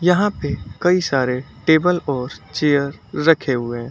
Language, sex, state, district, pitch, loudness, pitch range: Hindi, male, Uttar Pradesh, Lucknow, 140 Hz, -19 LUFS, 125-170 Hz